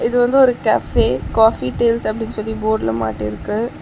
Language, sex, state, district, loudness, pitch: Tamil, female, Tamil Nadu, Chennai, -17 LUFS, 220 Hz